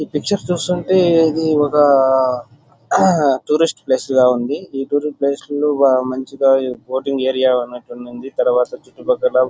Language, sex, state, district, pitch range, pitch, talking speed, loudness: Telugu, male, Andhra Pradesh, Chittoor, 130-150 Hz, 135 Hz, 135 wpm, -16 LUFS